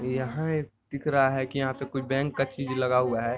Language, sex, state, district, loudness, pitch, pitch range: Hindi, male, Bihar, Sitamarhi, -28 LUFS, 135 Hz, 125-140 Hz